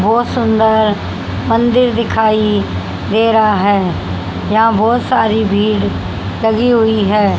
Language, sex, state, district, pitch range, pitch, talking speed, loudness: Hindi, female, Haryana, Rohtak, 190-225 Hz, 215 Hz, 115 wpm, -13 LUFS